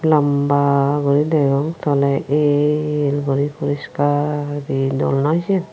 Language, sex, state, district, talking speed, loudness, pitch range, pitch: Chakma, female, Tripura, Unakoti, 125 wpm, -18 LUFS, 140-150 Hz, 145 Hz